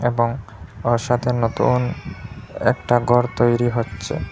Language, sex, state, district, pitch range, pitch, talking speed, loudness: Bengali, male, Assam, Hailakandi, 110-120 Hz, 120 Hz, 110 wpm, -20 LUFS